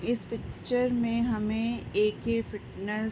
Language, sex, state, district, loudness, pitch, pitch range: Hindi, female, Uttar Pradesh, Varanasi, -30 LUFS, 230 Hz, 215-235 Hz